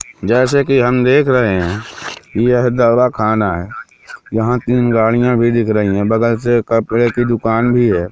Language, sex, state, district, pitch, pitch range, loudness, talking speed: Hindi, male, Madhya Pradesh, Katni, 115 Hz, 110-125 Hz, -14 LUFS, 175 wpm